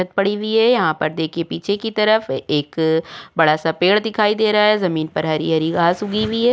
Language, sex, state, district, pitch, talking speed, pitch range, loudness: Hindi, female, Uttar Pradesh, Jyotiba Phule Nagar, 185 Hz, 220 wpm, 160-215 Hz, -18 LUFS